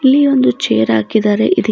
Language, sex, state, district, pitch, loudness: Kannada, female, Karnataka, Bidar, 210 Hz, -13 LUFS